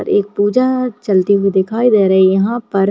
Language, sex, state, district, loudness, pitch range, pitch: Hindi, female, Uttarakhand, Tehri Garhwal, -14 LUFS, 195-235 Hz, 205 Hz